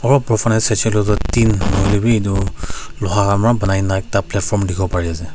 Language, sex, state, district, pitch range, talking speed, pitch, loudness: Nagamese, male, Nagaland, Kohima, 95-110 Hz, 200 wpm, 100 Hz, -17 LUFS